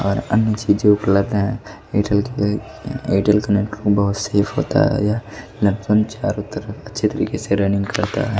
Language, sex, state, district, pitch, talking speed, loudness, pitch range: Hindi, male, Odisha, Malkangiri, 105 Hz, 180 wpm, -19 LUFS, 100-110 Hz